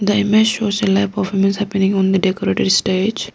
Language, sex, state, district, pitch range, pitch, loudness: English, female, Arunachal Pradesh, Lower Dibang Valley, 195-205 Hz, 200 Hz, -16 LUFS